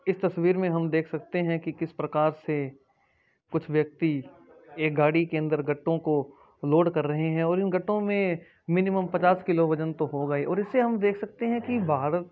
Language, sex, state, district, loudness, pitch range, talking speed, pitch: Hindi, male, Rajasthan, Churu, -27 LUFS, 155-185 Hz, 200 wpm, 165 Hz